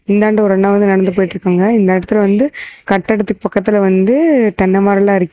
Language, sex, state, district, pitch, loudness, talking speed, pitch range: Tamil, female, Tamil Nadu, Namakkal, 200 Hz, -12 LUFS, 170 wpm, 190-215 Hz